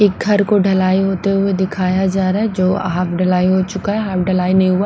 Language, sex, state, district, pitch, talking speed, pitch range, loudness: Hindi, female, Punjab, Pathankot, 190 Hz, 235 wpm, 185-195 Hz, -16 LUFS